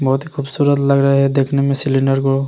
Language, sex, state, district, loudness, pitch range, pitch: Hindi, male, Bihar, Vaishali, -15 LUFS, 135-140 Hz, 140 Hz